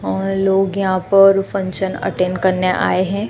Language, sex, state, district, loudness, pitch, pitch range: Hindi, female, Gujarat, Gandhinagar, -16 LUFS, 190 Hz, 185-195 Hz